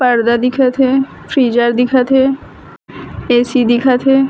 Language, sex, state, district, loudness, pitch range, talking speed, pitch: Chhattisgarhi, female, Chhattisgarh, Bilaspur, -13 LUFS, 245-265 Hz, 125 wpm, 255 Hz